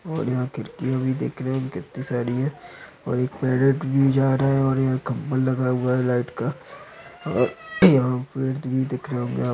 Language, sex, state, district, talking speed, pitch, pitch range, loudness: Hindi, male, Bihar, Supaul, 215 wpm, 130 Hz, 125-135 Hz, -23 LUFS